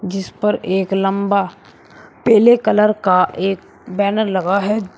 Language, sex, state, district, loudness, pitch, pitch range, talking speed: Hindi, male, Uttar Pradesh, Shamli, -16 LUFS, 200 Hz, 190-210 Hz, 130 wpm